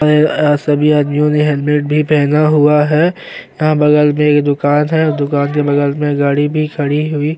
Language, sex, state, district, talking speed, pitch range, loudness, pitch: Hindi, male, Uttarakhand, Tehri Garhwal, 195 wpm, 145-150 Hz, -13 LUFS, 150 Hz